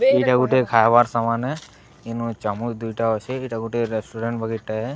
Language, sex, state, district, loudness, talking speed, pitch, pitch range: Odia, male, Odisha, Sambalpur, -21 LUFS, 180 wpm, 115 Hz, 115-125 Hz